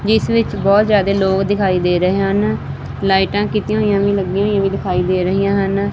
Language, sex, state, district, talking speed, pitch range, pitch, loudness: Punjabi, female, Punjab, Fazilka, 200 wpm, 190-205 Hz, 195 Hz, -16 LUFS